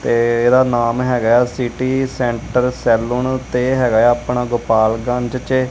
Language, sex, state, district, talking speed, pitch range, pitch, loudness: Punjabi, male, Punjab, Kapurthala, 170 wpm, 120-130 Hz, 125 Hz, -16 LUFS